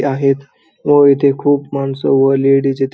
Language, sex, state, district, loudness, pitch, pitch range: Marathi, male, Maharashtra, Pune, -13 LUFS, 140 Hz, 135-140 Hz